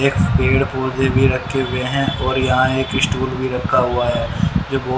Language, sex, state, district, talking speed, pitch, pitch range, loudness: Hindi, male, Haryana, Rohtak, 205 wpm, 130 Hz, 125-135 Hz, -18 LUFS